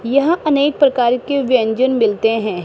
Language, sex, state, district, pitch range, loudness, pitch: Hindi, female, Rajasthan, Jaipur, 225-280 Hz, -15 LUFS, 255 Hz